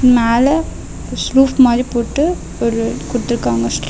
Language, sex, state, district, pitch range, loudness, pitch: Tamil, female, Tamil Nadu, Namakkal, 230-265 Hz, -15 LUFS, 240 Hz